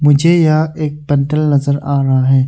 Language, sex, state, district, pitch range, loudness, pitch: Hindi, male, Arunachal Pradesh, Longding, 140-155 Hz, -13 LUFS, 145 Hz